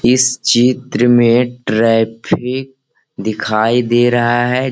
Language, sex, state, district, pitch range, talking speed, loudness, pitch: Hindi, male, Bihar, Gaya, 115-125 Hz, 100 wpm, -14 LUFS, 120 Hz